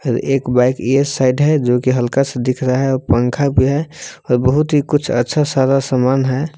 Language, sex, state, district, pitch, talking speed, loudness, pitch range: Hindi, male, Jharkhand, Palamu, 135 Hz, 220 wpm, -15 LUFS, 125-145 Hz